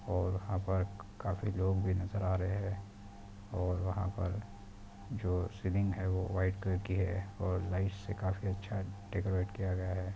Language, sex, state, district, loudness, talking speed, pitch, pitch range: Hindi, male, Chhattisgarh, Bastar, -36 LUFS, 175 wpm, 95 Hz, 95-100 Hz